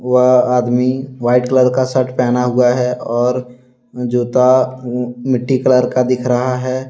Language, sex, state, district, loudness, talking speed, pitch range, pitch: Hindi, male, Jharkhand, Deoghar, -15 LUFS, 155 wpm, 125-130 Hz, 125 Hz